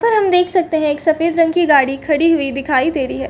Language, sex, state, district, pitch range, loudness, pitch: Hindi, female, Chhattisgarh, Rajnandgaon, 285-345 Hz, -15 LUFS, 320 Hz